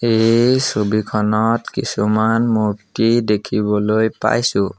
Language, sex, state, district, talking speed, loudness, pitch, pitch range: Assamese, male, Assam, Sonitpur, 75 wpm, -17 LUFS, 110 Hz, 105-115 Hz